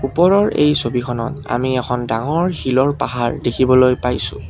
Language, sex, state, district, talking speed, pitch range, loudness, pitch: Assamese, male, Assam, Kamrup Metropolitan, 135 wpm, 120-145 Hz, -17 LUFS, 130 Hz